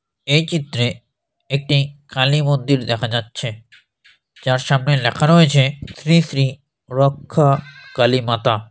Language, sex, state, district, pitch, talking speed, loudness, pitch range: Bengali, male, West Bengal, Dakshin Dinajpur, 135 Hz, 95 wpm, -18 LUFS, 120-145 Hz